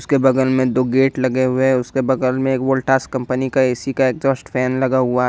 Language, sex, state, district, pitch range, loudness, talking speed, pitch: Hindi, male, Jharkhand, Ranchi, 130-135 Hz, -17 LUFS, 250 wpm, 130 Hz